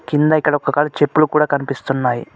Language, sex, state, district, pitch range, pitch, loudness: Telugu, male, Telangana, Mahabubabad, 140-150 Hz, 145 Hz, -17 LUFS